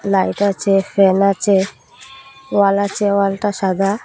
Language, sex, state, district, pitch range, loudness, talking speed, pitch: Bengali, female, Assam, Hailakandi, 195-205 Hz, -16 LUFS, 120 wpm, 200 Hz